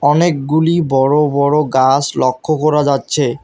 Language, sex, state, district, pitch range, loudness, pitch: Bengali, male, West Bengal, Alipurduar, 135-150 Hz, -14 LUFS, 145 Hz